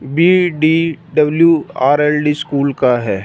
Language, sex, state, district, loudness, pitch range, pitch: Hindi, male, Punjab, Fazilka, -14 LUFS, 140-165 Hz, 150 Hz